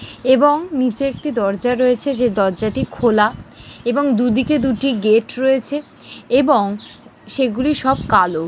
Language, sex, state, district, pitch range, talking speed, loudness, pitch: Bengali, female, West Bengal, Malda, 225-275 Hz, 120 wpm, -17 LUFS, 255 Hz